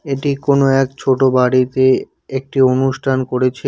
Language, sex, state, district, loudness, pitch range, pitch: Bengali, male, West Bengal, Cooch Behar, -15 LUFS, 130-135 Hz, 130 Hz